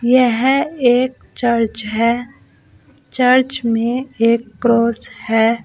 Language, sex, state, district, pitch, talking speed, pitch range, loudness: Hindi, female, Uttar Pradesh, Saharanpur, 235 Hz, 95 wpm, 230-255 Hz, -16 LUFS